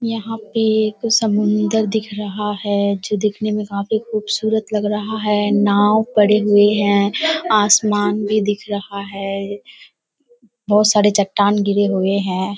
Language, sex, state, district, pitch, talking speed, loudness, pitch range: Hindi, female, Bihar, Kishanganj, 210 Hz, 145 wpm, -17 LUFS, 205-220 Hz